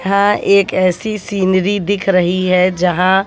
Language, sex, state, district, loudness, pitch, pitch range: Hindi, female, Haryana, Jhajjar, -14 LUFS, 190 Hz, 185-200 Hz